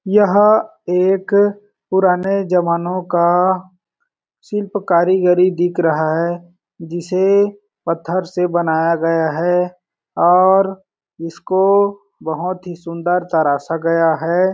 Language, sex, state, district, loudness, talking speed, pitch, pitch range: Hindi, male, Chhattisgarh, Balrampur, -16 LUFS, 100 wpm, 180 Hz, 170-190 Hz